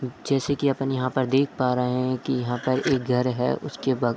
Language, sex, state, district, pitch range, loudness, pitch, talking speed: Hindi, male, Uttar Pradesh, Etah, 125-135 Hz, -24 LUFS, 130 Hz, 230 wpm